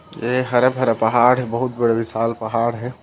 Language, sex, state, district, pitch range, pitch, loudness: Chhattisgarhi, male, Chhattisgarh, Raigarh, 115-125 Hz, 120 Hz, -19 LUFS